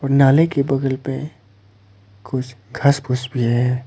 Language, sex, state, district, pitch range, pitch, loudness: Hindi, male, Arunachal Pradesh, Papum Pare, 115-135 Hz, 130 Hz, -19 LUFS